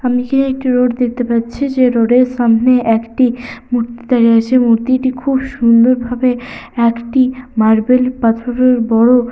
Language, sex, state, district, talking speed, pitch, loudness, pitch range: Bengali, female, West Bengal, Purulia, 135 wpm, 245 Hz, -13 LUFS, 235-255 Hz